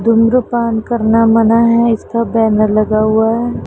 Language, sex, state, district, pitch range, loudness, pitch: Hindi, female, Punjab, Pathankot, 220-230 Hz, -12 LUFS, 225 Hz